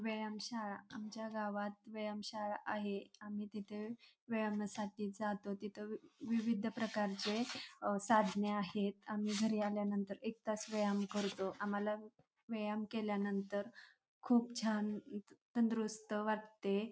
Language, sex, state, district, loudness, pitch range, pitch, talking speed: Marathi, female, Maharashtra, Pune, -41 LUFS, 205-220 Hz, 210 Hz, 110 wpm